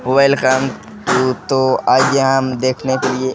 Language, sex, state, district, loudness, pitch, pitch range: Hindi, male, Bihar, Kishanganj, -15 LUFS, 130 Hz, 130-135 Hz